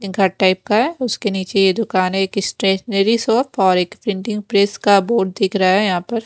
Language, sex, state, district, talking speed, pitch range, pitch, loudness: Hindi, female, Bihar, West Champaran, 230 wpm, 190-220 Hz, 200 Hz, -17 LUFS